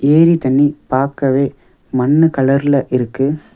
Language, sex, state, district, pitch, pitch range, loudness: Tamil, male, Tamil Nadu, Nilgiris, 140 Hz, 130-145 Hz, -14 LUFS